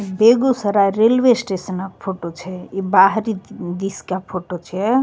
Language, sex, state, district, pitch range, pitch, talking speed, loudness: Maithili, female, Bihar, Begusarai, 185-220 Hz, 195 Hz, 130 wpm, -18 LUFS